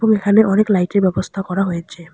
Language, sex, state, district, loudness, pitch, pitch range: Bengali, female, West Bengal, Alipurduar, -16 LUFS, 195 Hz, 180-205 Hz